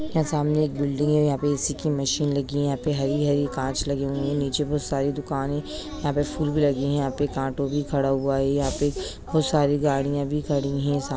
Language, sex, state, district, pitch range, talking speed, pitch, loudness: Hindi, male, Bihar, East Champaran, 140-145 Hz, 245 wpm, 145 Hz, -24 LUFS